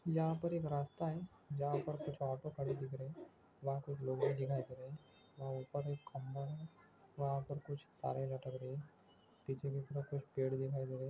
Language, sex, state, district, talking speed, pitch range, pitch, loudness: Hindi, male, Chhattisgarh, Bastar, 205 wpm, 135-145 Hz, 140 Hz, -43 LUFS